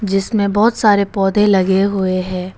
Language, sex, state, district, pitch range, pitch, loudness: Hindi, female, Arunachal Pradesh, Papum Pare, 190-205 Hz, 195 Hz, -15 LUFS